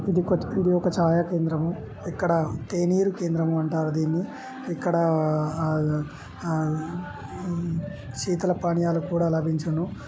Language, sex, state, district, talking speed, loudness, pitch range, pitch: Telugu, male, Telangana, Karimnagar, 100 wpm, -25 LUFS, 155-180 Hz, 165 Hz